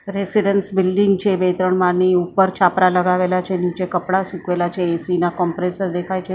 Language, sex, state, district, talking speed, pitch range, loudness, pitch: Gujarati, female, Maharashtra, Mumbai Suburban, 190 wpm, 180-190 Hz, -18 LUFS, 185 Hz